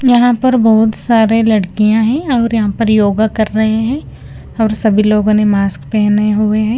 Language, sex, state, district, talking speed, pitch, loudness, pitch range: Hindi, female, Punjab, Kapurthala, 185 wpm, 220 Hz, -12 LUFS, 210-230 Hz